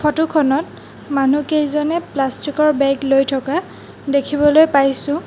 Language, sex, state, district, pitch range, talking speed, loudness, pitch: Assamese, female, Assam, Sonitpur, 275-300 Hz, 115 wpm, -17 LUFS, 290 Hz